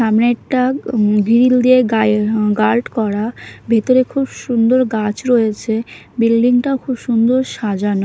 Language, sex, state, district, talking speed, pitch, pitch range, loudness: Bengali, female, Odisha, Nuapada, 135 wpm, 230 Hz, 215-255 Hz, -15 LUFS